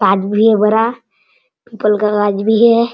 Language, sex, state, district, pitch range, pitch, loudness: Hindi, male, Bihar, Sitamarhi, 210-230 Hz, 220 Hz, -13 LUFS